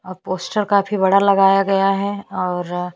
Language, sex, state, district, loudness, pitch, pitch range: Hindi, female, Chhattisgarh, Bastar, -18 LUFS, 195 Hz, 185-200 Hz